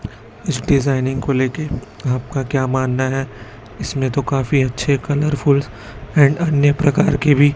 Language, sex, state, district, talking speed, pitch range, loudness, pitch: Hindi, male, Chhattisgarh, Raipur, 145 wpm, 130-145 Hz, -18 LUFS, 135 Hz